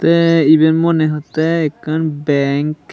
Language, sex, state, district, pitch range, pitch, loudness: Chakma, male, Tripura, Unakoti, 150-165 Hz, 155 Hz, -14 LUFS